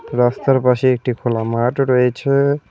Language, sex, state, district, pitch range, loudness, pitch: Bengali, male, West Bengal, Cooch Behar, 120-135 Hz, -17 LUFS, 125 Hz